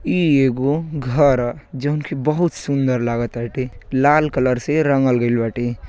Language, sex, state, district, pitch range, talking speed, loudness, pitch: Bhojpuri, male, Uttar Pradesh, Gorakhpur, 120-145 Hz, 155 wpm, -19 LUFS, 130 Hz